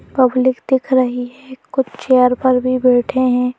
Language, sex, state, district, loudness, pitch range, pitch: Hindi, female, Madhya Pradesh, Bhopal, -15 LUFS, 250-260 Hz, 255 Hz